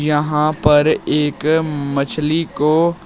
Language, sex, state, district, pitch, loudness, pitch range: Hindi, male, Uttar Pradesh, Shamli, 150 Hz, -16 LUFS, 150-155 Hz